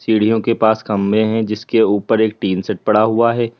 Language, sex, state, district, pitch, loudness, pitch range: Hindi, male, Uttar Pradesh, Lalitpur, 110 Hz, -16 LUFS, 105-110 Hz